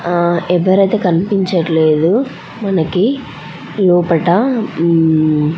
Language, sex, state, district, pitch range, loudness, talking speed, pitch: Telugu, female, Andhra Pradesh, Anantapur, 165-195 Hz, -14 LUFS, 75 wpm, 175 Hz